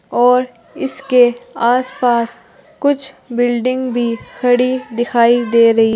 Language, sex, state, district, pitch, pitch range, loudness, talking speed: Hindi, female, Uttar Pradesh, Saharanpur, 245 Hz, 235-255 Hz, -15 LUFS, 110 wpm